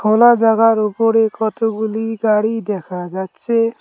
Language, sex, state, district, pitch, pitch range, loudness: Bengali, male, West Bengal, Cooch Behar, 220 Hz, 210-225 Hz, -16 LUFS